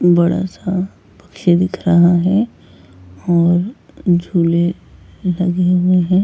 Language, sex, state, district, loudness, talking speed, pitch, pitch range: Hindi, female, Goa, North and South Goa, -16 LUFS, 105 wpm, 175 Hz, 170-185 Hz